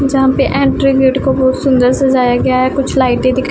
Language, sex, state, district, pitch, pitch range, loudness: Hindi, female, Punjab, Pathankot, 265 Hz, 255-270 Hz, -12 LUFS